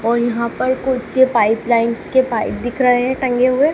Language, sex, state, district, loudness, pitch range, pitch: Hindi, female, Madhya Pradesh, Dhar, -16 LUFS, 235-260 Hz, 245 Hz